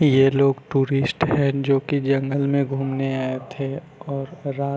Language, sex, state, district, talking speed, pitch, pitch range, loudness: Hindi, male, Bihar, Begusarai, 175 wpm, 140 Hz, 135-140 Hz, -22 LUFS